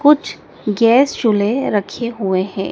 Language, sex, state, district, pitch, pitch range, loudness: Hindi, male, Madhya Pradesh, Dhar, 225 Hz, 205-260 Hz, -16 LUFS